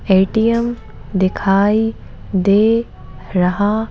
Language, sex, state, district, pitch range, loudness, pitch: Hindi, female, Madhya Pradesh, Bhopal, 190-225 Hz, -16 LUFS, 205 Hz